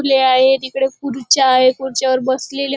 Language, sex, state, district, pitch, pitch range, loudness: Marathi, female, Maharashtra, Chandrapur, 265 Hz, 260-270 Hz, -15 LUFS